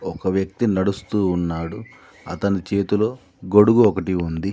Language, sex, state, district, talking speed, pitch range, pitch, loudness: Telugu, male, Telangana, Mahabubabad, 120 wpm, 90-105 Hz, 95 Hz, -20 LUFS